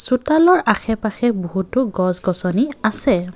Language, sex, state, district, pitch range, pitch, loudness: Assamese, male, Assam, Kamrup Metropolitan, 185-260 Hz, 225 Hz, -17 LUFS